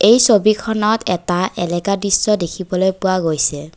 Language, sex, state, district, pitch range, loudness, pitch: Assamese, female, Assam, Kamrup Metropolitan, 175-210 Hz, -16 LUFS, 190 Hz